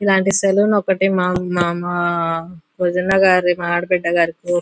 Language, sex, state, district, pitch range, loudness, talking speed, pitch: Telugu, female, Andhra Pradesh, Guntur, 175-190 Hz, -17 LUFS, 130 wpm, 180 Hz